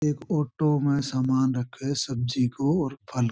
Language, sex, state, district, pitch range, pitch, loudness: Marwari, male, Rajasthan, Churu, 130-145 Hz, 135 Hz, -26 LUFS